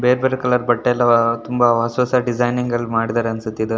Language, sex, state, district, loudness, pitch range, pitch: Kannada, male, Karnataka, Shimoga, -18 LUFS, 115-125 Hz, 120 Hz